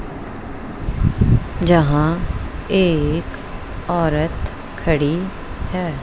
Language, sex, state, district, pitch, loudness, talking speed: Hindi, female, Punjab, Pathankot, 155 Hz, -19 LUFS, 50 wpm